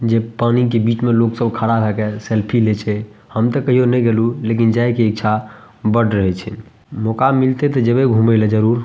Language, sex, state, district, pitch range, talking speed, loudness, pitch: Maithili, male, Bihar, Madhepura, 110-120 Hz, 225 wpm, -16 LUFS, 115 Hz